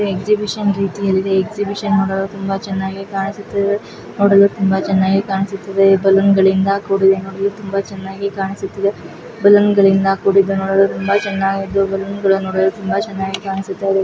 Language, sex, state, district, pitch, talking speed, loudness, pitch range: Kannada, female, Karnataka, Chamarajanagar, 195 Hz, 110 wpm, -16 LUFS, 195-200 Hz